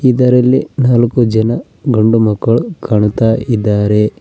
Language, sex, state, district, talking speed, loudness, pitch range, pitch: Kannada, male, Karnataka, Koppal, 100 wpm, -12 LUFS, 110-125 Hz, 115 Hz